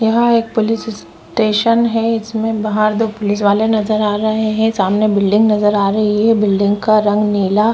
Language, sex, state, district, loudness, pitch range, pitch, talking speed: Hindi, female, Chhattisgarh, Korba, -14 LUFS, 210-225 Hz, 215 Hz, 185 wpm